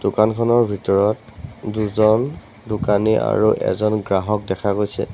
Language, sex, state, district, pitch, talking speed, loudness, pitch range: Assamese, male, Assam, Sonitpur, 105 Hz, 105 wpm, -19 LUFS, 100-110 Hz